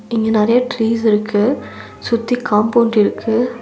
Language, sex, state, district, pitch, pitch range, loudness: Tamil, female, Tamil Nadu, Nilgiris, 225 Hz, 215-235 Hz, -16 LUFS